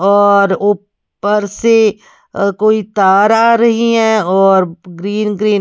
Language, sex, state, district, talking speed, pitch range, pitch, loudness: Hindi, female, Haryana, Charkhi Dadri, 130 wpm, 195-220 Hz, 205 Hz, -12 LUFS